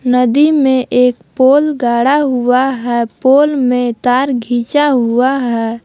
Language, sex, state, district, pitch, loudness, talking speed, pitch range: Hindi, female, Jharkhand, Palamu, 250 Hz, -12 LUFS, 135 wpm, 245-275 Hz